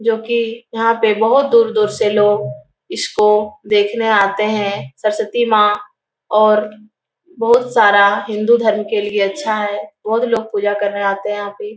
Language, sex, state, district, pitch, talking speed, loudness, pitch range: Hindi, female, Bihar, Jahanabad, 210 Hz, 160 wpm, -15 LUFS, 205-225 Hz